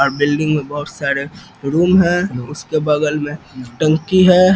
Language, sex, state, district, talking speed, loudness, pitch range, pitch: Hindi, male, Bihar, East Champaran, 155 wpm, -16 LUFS, 145-175 Hz, 150 Hz